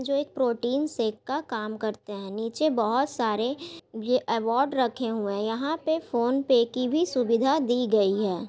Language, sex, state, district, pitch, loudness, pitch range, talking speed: Hindi, female, Bihar, Gaya, 245 Hz, -26 LUFS, 220-275 Hz, 175 wpm